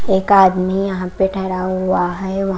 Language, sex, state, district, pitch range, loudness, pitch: Hindi, female, Maharashtra, Washim, 185-190 Hz, -16 LUFS, 190 Hz